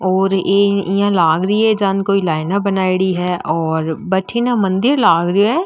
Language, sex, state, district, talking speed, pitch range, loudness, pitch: Marwari, female, Rajasthan, Nagaur, 170 wpm, 180-200 Hz, -15 LUFS, 195 Hz